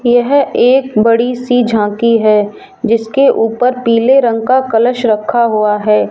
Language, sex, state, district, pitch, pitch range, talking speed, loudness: Hindi, female, Rajasthan, Jaipur, 235 Hz, 225-255 Hz, 145 wpm, -11 LUFS